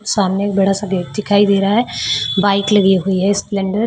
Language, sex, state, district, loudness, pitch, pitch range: Hindi, female, Odisha, Khordha, -15 LUFS, 200 Hz, 195-205 Hz